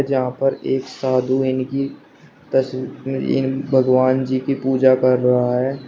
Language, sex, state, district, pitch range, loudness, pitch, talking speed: Hindi, male, Uttar Pradesh, Shamli, 130-135 Hz, -19 LUFS, 130 Hz, 130 wpm